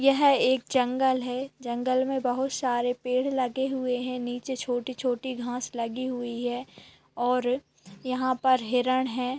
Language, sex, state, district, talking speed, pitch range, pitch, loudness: Hindi, female, Bihar, Purnia, 160 wpm, 245-260 Hz, 255 Hz, -27 LUFS